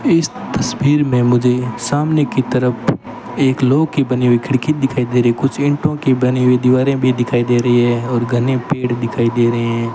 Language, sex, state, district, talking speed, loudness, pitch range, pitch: Hindi, male, Rajasthan, Bikaner, 205 wpm, -15 LUFS, 120-135 Hz, 125 Hz